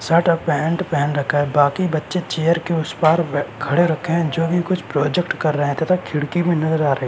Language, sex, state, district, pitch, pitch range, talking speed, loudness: Hindi, male, Uttar Pradesh, Varanasi, 160 Hz, 145-175 Hz, 235 wpm, -19 LUFS